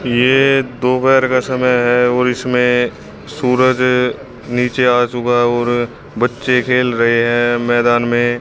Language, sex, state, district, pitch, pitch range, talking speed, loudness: Hindi, male, Haryana, Jhajjar, 125 Hz, 120-125 Hz, 135 wpm, -14 LUFS